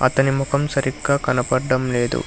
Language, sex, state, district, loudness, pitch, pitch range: Telugu, male, Telangana, Hyderabad, -20 LUFS, 130 Hz, 130-140 Hz